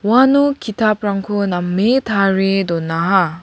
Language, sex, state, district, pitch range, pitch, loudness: Garo, female, Meghalaya, West Garo Hills, 185-220 Hz, 200 Hz, -16 LUFS